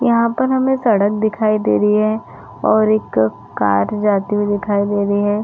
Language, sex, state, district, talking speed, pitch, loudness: Hindi, female, Chhattisgarh, Rajnandgaon, 190 wpm, 205 Hz, -16 LUFS